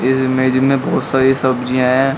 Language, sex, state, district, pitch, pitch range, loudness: Hindi, male, Uttar Pradesh, Shamli, 130 Hz, 130-135 Hz, -15 LUFS